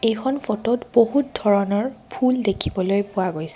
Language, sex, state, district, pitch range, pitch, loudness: Assamese, female, Assam, Kamrup Metropolitan, 200-250 Hz, 215 Hz, -21 LUFS